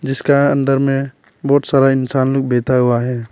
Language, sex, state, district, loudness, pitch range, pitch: Hindi, male, Arunachal Pradesh, Papum Pare, -15 LUFS, 125-140 Hz, 135 Hz